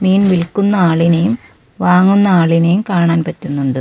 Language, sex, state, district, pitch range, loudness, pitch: Malayalam, female, Kerala, Kollam, 165-195 Hz, -13 LUFS, 175 Hz